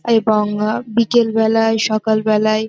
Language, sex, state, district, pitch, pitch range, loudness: Bengali, female, West Bengal, North 24 Parganas, 220 Hz, 215-225 Hz, -16 LUFS